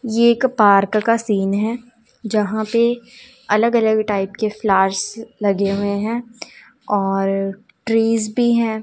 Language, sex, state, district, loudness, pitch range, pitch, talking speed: Hindi, female, Punjab, Kapurthala, -18 LUFS, 200-235 Hz, 220 Hz, 135 wpm